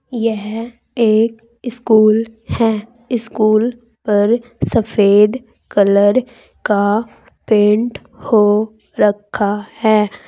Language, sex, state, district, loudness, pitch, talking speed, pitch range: Hindi, female, Uttar Pradesh, Saharanpur, -15 LUFS, 220 Hz, 75 wpm, 210-235 Hz